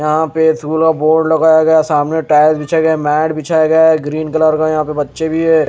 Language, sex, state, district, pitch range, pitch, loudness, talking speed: Hindi, male, Haryana, Jhajjar, 155-160 Hz, 160 Hz, -12 LUFS, 245 wpm